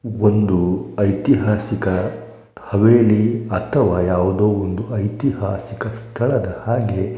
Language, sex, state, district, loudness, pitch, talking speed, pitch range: Kannada, male, Karnataka, Shimoga, -18 LUFS, 105 Hz, 75 wpm, 100-115 Hz